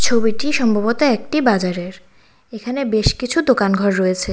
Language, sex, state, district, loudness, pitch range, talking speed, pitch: Bengali, female, Tripura, West Tripura, -17 LUFS, 200-260 Hz, 140 wpm, 230 Hz